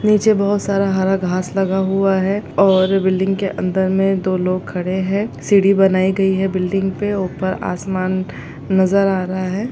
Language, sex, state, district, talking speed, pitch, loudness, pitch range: Hindi, female, Chhattisgarh, Bilaspur, 180 wpm, 190 Hz, -17 LUFS, 185-195 Hz